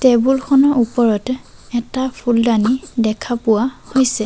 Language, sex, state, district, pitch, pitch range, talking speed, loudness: Assamese, female, Assam, Sonitpur, 245 Hz, 230-260 Hz, 110 wpm, -17 LUFS